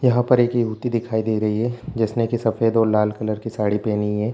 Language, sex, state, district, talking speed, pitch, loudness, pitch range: Hindi, male, Chhattisgarh, Bilaspur, 250 wpm, 115 Hz, -21 LUFS, 110-120 Hz